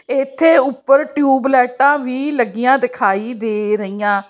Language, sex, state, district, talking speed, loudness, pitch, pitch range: Punjabi, female, Chandigarh, Chandigarh, 125 wpm, -15 LUFS, 255 Hz, 215-275 Hz